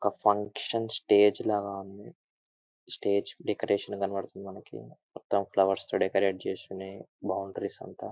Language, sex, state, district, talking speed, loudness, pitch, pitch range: Telugu, male, Andhra Pradesh, Anantapur, 140 wpm, -29 LUFS, 100 Hz, 95-105 Hz